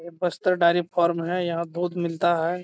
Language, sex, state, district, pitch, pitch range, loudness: Hindi, male, Bihar, Jamui, 170 Hz, 170-175 Hz, -24 LUFS